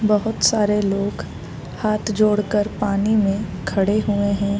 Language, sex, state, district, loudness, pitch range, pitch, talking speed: Hindi, female, Bihar, Darbhanga, -20 LUFS, 200-215 Hz, 210 Hz, 145 wpm